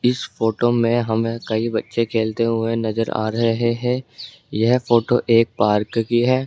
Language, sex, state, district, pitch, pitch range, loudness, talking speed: Hindi, male, Rajasthan, Jaipur, 115 Hz, 115-120 Hz, -20 LUFS, 165 wpm